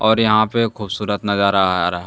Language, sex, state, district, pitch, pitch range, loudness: Hindi, male, Jharkhand, Deoghar, 105 Hz, 100-110 Hz, -17 LUFS